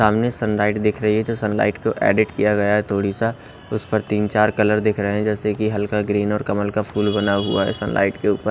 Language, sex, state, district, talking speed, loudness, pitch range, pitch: Hindi, male, Odisha, Nuapada, 275 wpm, -20 LUFS, 105-110 Hz, 105 Hz